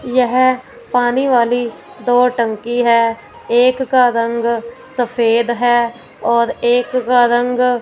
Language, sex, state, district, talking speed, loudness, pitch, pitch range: Hindi, female, Punjab, Fazilka, 115 wpm, -15 LUFS, 240 Hz, 235-250 Hz